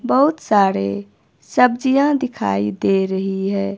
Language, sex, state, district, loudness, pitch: Hindi, female, Himachal Pradesh, Shimla, -18 LUFS, 195 Hz